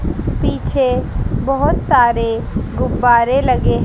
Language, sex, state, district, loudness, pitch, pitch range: Hindi, female, Haryana, Jhajjar, -16 LUFS, 245 Hz, 235-270 Hz